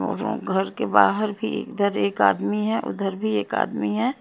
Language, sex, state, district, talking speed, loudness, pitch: Hindi, female, Haryana, Jhajjar, 200 wpm, -23 LUFS, 115 Hz